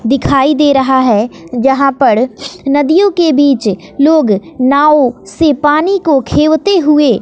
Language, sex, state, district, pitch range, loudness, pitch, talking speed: Hindi, female, Bihar, West Champaran, 260-305 Hz, -10 LUFS, 280 Hz, 135 wpm